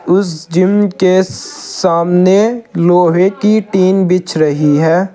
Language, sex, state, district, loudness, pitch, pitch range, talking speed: Hindi, male, Uttar Pradesh, Saharanpur, -12 LUFS, 185 Hz, 170-195 Hz, 130 wpm